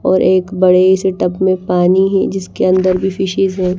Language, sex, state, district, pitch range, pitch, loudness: Hindi, female, Bihar, Patna, 185-190 Hz, 185 Hz, -13 LUFS